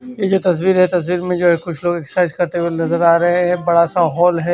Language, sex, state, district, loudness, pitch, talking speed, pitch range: Hindi, male, Haryana, Charkhi Dadri, -16 LUFS, 175 Hz, 290 wpm, 170-180 Hz